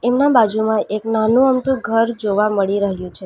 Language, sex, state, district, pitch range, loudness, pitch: Gujarati, female, Gujarat, Valsad, 205-240 Hz, -17 LUFS, 220 Hz